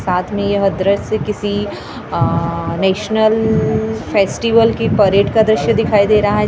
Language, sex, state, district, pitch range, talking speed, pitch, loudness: Hindi, female, Maharashtra, Gondia, 195-215 Hz, 185 wpm, 205 Hz, -15 LUFS